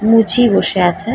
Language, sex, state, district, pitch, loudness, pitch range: Bengali, female, West Bengal, Kolkata, 225 Hz, -12 LUFS, 190-235 Hz